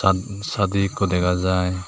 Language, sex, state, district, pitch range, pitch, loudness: Chakma, male, Tripura, Dhalai, 90-100 Hz, 95 Hz, -22 LUFS